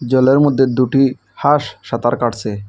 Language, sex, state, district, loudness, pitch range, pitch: Bengali, male, Assam, Hailakandi, -15 LUFS, 120-135 Hz, 130 Hz